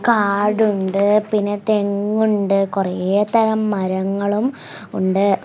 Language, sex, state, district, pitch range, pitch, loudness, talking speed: Malayalam, female, Kerala, Kasaragod, 195-215 Hz, 205 Hz, -18 LUFS, 75 wpm